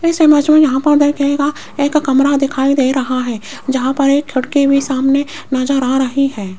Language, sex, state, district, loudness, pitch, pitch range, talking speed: Hindi, female, Rajasthan, Jaipur, -14 LUFS, 275 Hz, 265-285 Hz, 200 wpm